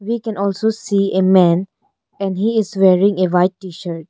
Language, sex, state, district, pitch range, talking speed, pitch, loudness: English, female, Arunachal Pradesh, Longding, 185-205 Hz, 190 wpm, 195 Hz, -16 LUFS